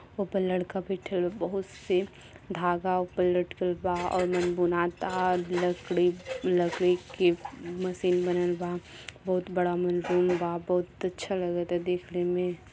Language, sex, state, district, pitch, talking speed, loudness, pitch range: Bhojpuri, female, Uttar Pradesh, Gorakhpur, 180 Hz, 135 wpm, -29 LUFS, 175-185 Hz